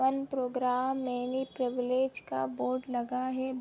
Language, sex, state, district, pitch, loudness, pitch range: Hindi, female, Chhattisgarh, Bilaspur, 255 Hz, -32 LUFS, 250-260 Hz